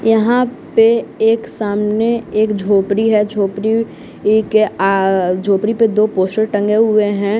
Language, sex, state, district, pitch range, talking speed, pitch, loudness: Hindi, male, Bihar, West Champaran, 200-225 Hz, 145 wpm, 215 Hz, -15 LUFS